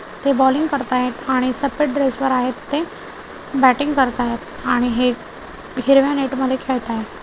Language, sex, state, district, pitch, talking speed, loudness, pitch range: Marathi, female, Maharashtra, Chandrapur, 265 Hz, 140 wpm, -19 LUFS, 250-275 Hz